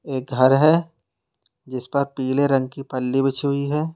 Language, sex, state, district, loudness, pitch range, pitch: Hindi, male, Uttar Pradesh, Lalitpur, -20 LUFS, 130-140 Hz, 135 Hz